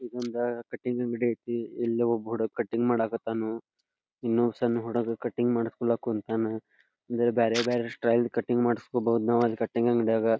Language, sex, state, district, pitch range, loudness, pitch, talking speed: Kannada, male, Karnataka, Belgaum, 115-120 Hz, -28 LUFS, 120 Hz, 150 wpm